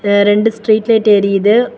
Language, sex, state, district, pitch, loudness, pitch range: Tamil, female, Tamil Nadu, Kanyakumari, 215 Hz, -12 LUFS, 205-225 Hz